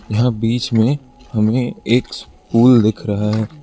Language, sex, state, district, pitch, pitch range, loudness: Hindi, male, Arunachal Pradesh, Lower Dibang Valley, 115 Hz, 105-120 Hz, -16 LUFS